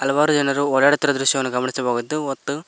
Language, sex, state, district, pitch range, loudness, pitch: Kannada, male, Karnataka, Koppal, 130-145 Hz, -19 LUFS, 140 Hz